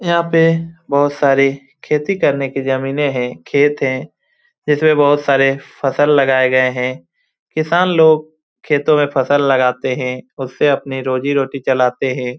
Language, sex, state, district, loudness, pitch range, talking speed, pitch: Hindi, male, Bihar, Lakhisarai, -15 LUFS, 130-155 Hz, 155 wpm, 140 Hz